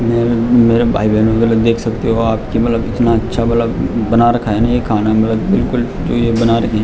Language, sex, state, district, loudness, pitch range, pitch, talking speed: Hindi, male, Uttarakhand, Tehri Garhwal, -14 LUFS, 110-115 Hz, 115 Hz, 200 wpm